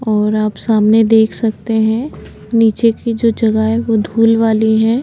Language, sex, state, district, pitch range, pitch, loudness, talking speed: Hindi, female, Uttarakhand, Tehri Garhwal, 220-230 Hz, 225 Hz, -13 LUFS, 180 wpm